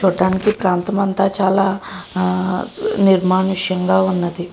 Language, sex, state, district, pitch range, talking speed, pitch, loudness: Telugu, female, Andhra Pradesh, Srikakulam, 185-195 Hz, 95 wpm, 190 Hz, -17 LUFS